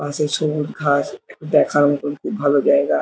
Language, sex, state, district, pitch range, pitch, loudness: Bengali, male, West Bengal, Jhargram, 145-150 Hz, 145 Hz, -18 LUFS